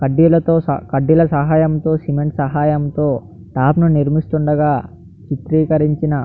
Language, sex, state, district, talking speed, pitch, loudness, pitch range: Telugu, male, Andhra Pradesh, Anantapur, 95 wpm, 150 Hz, -15 LUFS, 140-155 Hz